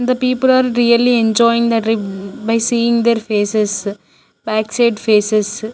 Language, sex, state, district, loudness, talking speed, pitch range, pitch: English, female, Chandigarh, Chandigarh, -15 LUFS, 125 wpm, 215-235 Hz, 230 Hz